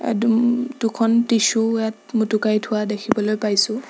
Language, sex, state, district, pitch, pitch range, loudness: Assamese, female, Assam, Sonitpur, 225 Hz, 215-230 Hz, -20 LUFS